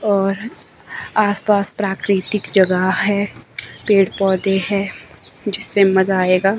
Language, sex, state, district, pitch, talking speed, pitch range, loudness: Hindi, male, Himachal Pradesh, Shimla, 195 Hz, 100 wpm, 190-205 Hz, -17 LUFS